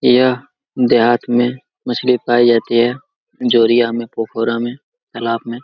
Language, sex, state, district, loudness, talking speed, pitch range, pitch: Hindi, male, Jharkhand, Jamtara, -15 LUFS, 140 wpm, 115-130 Hz, 120 Hz